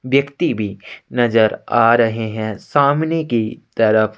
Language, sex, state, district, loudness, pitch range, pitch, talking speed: Hindi, male, Chhattisgarh, Sukma, -17 LUFS, 110-140 Hz, 115 Hz, 130 wpm